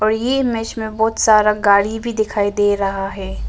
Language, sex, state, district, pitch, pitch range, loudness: Hindi, female, Arunachal Pradesh, Papum Pare, 215 Hz, 200-225 Hz, -17 LUFS